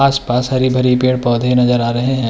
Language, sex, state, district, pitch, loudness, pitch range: Hindi, male, Uttarakhand, Tehri Garhwal, 125 Hz, -14 LUFS, 120-130 Hz